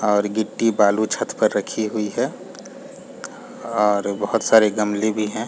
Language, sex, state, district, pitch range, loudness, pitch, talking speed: Hindi, male, Chhattisgarh, Balrampur, 105-110 Hz, -20 LUFS, 105 Hz, 155 wpm